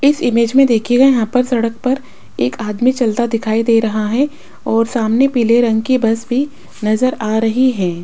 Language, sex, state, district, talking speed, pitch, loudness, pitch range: Hindi, female, Rajasthan, Jaipur, 200 wpm, 235 Hz, -15 LUFS, 220-255 Hz